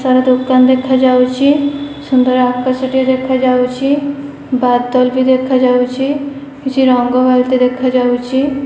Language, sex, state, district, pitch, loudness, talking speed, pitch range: Odia, female, Odisha, Khordha, 255 Hz, -12 LUFS, 90 wpm, 255-270 Hz